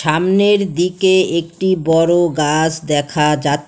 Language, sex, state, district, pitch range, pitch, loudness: Bengali, female, West Bengal, Alipurduar, 155-185 Hz, 165 Hz, -15 LUFS